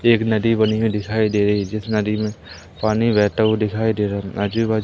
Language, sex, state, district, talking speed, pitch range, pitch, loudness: Hindi, male, Madhya Pradesh, Umaria, 245 wpm, 105-110 Hz, 110 Hz, -19 LUFS